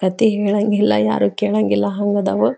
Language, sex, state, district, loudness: Kannada, female, Karnataka, Belgaum, -17 LUFS